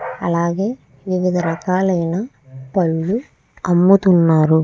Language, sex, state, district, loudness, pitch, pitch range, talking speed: Telugu, female, Andhra Pradesh, Krishna, -17 LUFS, 175 Hz, 160-190 Hz, 75 wpm